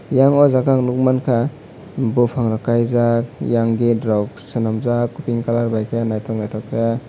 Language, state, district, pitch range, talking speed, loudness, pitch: Kokborok, Tripura, West Tripura, 115-130 Hz, 160 wpm, -18 LUFS, 120 Hz